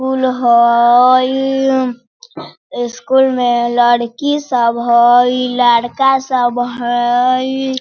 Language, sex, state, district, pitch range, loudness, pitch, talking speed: Hindi, female, Bihar, Sitamarhi, 240-265 Hz, -13 LUFS, 245 Hz, 75 wpm